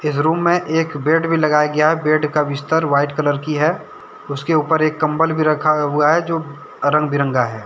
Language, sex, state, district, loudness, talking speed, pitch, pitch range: Hindi, male, Jharkhand, Deoghar, -17 LUFS, 210 wpm, 155 Hz, 145-160 Hz